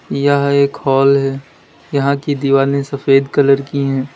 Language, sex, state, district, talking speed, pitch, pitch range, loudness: Hindi, male, Uttar Pradesh, Lalitpur, 160 wpm, 140 Hz, 135-140 Hz, -14 LUFS